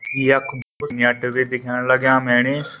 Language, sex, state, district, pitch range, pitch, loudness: Garhwali, male, Uttarakhand, Uttarkashi, 125-135 Hz, 130 Hz, -18 LUFS